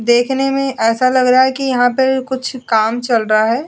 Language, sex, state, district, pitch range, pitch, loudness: Hindi, female, Goa, North and South Goa, 235-265 Hz, 255 Hz, -14 LUFS